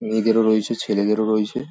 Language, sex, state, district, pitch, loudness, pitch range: Bengali, male, West Bengal, Paschim Medinipur, 110 Hz, -20 LUFS, 110-115 Hz